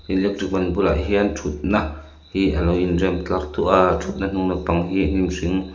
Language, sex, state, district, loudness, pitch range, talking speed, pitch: Mizo, male, Mizoram, Aizawl, -21 LUFS, 85-95 Hz, 210 wpm, 90 Hz